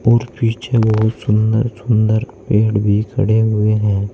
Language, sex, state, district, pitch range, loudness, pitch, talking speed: Hindi, male, Uttar Pradesh, Saharanpur, 105-115 Hz, -16 LUFS, 110 Hz, 145 wpm